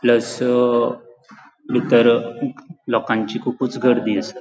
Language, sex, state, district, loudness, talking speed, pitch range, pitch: Konkani, male, Goa, North and South Goa, -19 LUFS, 110 wpm, 120-125 Hz, 120 Hz